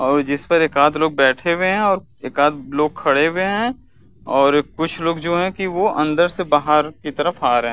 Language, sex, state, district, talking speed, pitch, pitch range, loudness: Hindi, male, Uttar Pradesh, Varanasi, 225 wpm, 155 Hz, 145-175 Hz, -18 LUFS